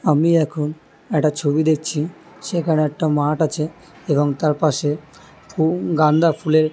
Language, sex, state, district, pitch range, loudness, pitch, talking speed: Bengali, male, West Bengal, North 24 Parganas, 150-160 Hz, -19 LUFS, 155 Hz, 135 wpm